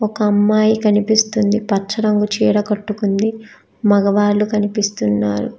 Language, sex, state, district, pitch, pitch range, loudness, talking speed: Telugu, female, Telangana, Hyderabad, 210 Hz, 205-215 Hz, -16 LUFS, 95 wpm